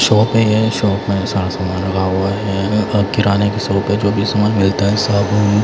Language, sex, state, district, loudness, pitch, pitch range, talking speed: Hindi, male, Punjab, Fazilka, -15 LUFS, 100 Hz, 100-105 Hz, 225 wpm